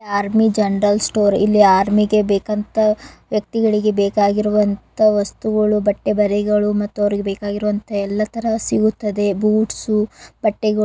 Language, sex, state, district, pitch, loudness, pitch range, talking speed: Kannada, female, Karnataka, Belgaum, 210 Hz, -17 LUFS, 205-215 Hz, 95 wpm